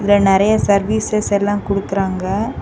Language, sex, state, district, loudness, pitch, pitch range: Tamil, female, Tamil Nadu, Kanyakumari, -16 LUFS, 200 Hz, 195-210 Hz